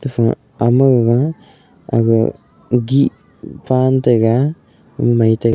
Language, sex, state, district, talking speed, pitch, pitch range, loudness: Wancho, male, Arunachal Pradesh, Longding, 110 wpm, 120 Hz, 115-130 Hz, -15 LUFS